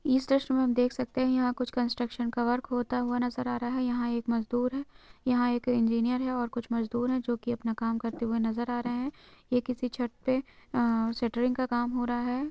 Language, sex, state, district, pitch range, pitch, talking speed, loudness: Hindi, female, West Bengal, Jhargram, 240-250 Hz, 245 Hz, 240 wpm, -30 LUFS